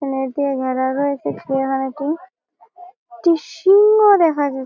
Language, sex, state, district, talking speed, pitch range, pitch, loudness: Bengali, female, West Bengal, Malda, 115 wpm, 270-360 Hz, 290 Hz, -17 LUFS